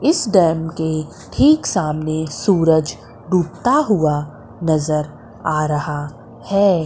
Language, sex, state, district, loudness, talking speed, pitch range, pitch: Hindi, female, Madhya Pradesh, Umaria, -18 LUFS, 105 wpm, 150-190 Hz, 160 Hz